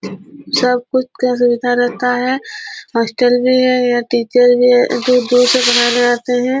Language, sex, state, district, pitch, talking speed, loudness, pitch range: Hindi, female, Chhattisgarh, Korba, 245 Hz, 155 wpm, -13 LUFS, 245-255 Hz